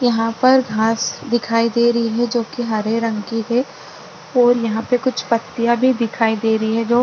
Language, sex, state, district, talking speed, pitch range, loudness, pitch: Hindi, female, Maharashtra, Aurangabad, 215 wpm, 225-245 Hz, -18 LUFS, 230 Hz